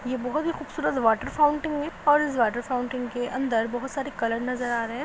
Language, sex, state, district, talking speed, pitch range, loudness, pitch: Hindi, female, Chhattisgarh, Rajnandgaon, 240 wpm, 240-295 Hz, -26 LUFS, 255 Hz